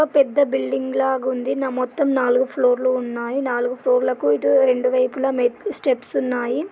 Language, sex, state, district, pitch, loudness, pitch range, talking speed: Telugu, female, Andhra Pradesh, Guntur, 255 Hz, -20 LUFS, 250-270 Hz, 160 wpm